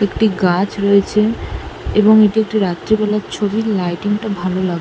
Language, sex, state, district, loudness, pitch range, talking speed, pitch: Bengali, female, West Bengal, North 24 Parganas, -16 LUFS, 190-215 Hz, 150 wpm, 205 Hz